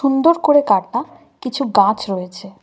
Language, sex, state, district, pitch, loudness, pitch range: Bengali, female, West Bengal, Cooch Behar, 240 Hz, -16 LUFS, 195-280 Hz